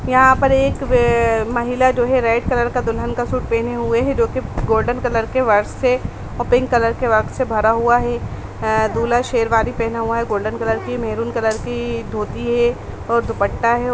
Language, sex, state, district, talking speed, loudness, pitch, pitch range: Hindi, female, Bihar, Sitamarhi, 205 wpm, -18 LUFS, 235 Hz, 220-245 Hz